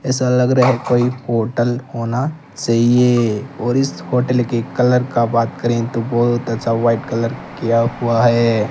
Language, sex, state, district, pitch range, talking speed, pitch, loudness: Hindi, male, Rajasthan, Bikaner, 115-125 Hz, 165 wpm, 120 Hz, -17 LUFS